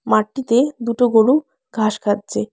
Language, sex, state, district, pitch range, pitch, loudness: Bengali, female, West Bengal, Alipurduar, 215-260 Hz, 235 Hz, -18 LUFS